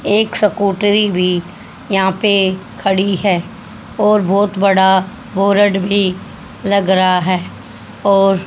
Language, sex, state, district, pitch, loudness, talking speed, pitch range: Hindi, female, Haryana, Rohtak, 195 Hz, -14 LUFS, 120 wpm, 190-205 Hz